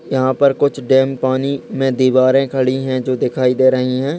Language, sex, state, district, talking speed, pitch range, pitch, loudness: Hindi, male, Chhattisgarh, Raigarh, 200 wpm, 130-135 Hz, 130 Hz, -15 LUFS